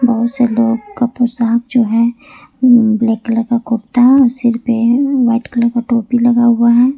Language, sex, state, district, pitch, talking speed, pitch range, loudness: Hindi, female, Jharkhand, Ranchi, 235 Hz, 180 wpm, 230-245 Hz, -13 LUFS